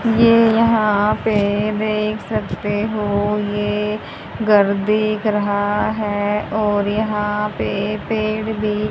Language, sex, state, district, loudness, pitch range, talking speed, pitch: Hindi, female, Haryana, Jhajjar, -18 LUFS, 205-215 Hz, 110 wpm, 210 Hz